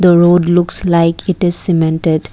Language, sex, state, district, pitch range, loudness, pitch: English, female, Assam, Kamrup Metropolitan, 165-175 Hz, -12 LUFS, 175 Hz